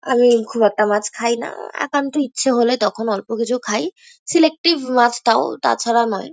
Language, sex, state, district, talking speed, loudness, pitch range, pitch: Bengali, female, West Bengal, Kolkata, 170 wpm, -18 LUFS, 230-290 Hz, 240 Hz